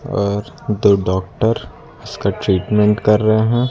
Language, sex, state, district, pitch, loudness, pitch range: Hindi, male, Uttar Pradesh, Lucknow, 105 Hz, -17 LUFS, 100-115 Hz